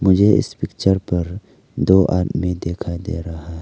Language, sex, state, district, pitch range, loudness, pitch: Hindi, male, Arunachal Pradesh, Lower Dibang Valley, 85-95 Hz, -19 LUFS, 90 Hz